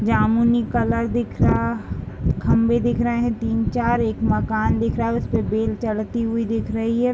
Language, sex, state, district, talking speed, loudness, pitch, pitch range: Hindi, female, Uttar Pradesh, Deoria, 195 wpm, -21 LUFS, 230 Hz, 225-235 Hz